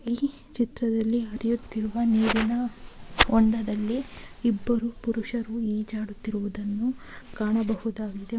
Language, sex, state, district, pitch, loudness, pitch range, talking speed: Kannada, female, Karnataka, Belgaum, 225 Hz, -27 LUFS, 215-235 Hz, 65 wpm